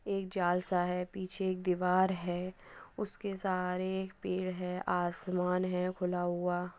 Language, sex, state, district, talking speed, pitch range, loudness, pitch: Hindi, female, Uttar Pradesh, Budaun, 150 wpm, 180-185 Hz, -34 LUFS, 180 Hz